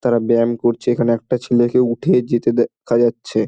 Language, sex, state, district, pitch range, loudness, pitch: Bengali, male, West Bengal, Dakshin Dinajpur, 115-120 Hz, -17 LUFS, 120 Hz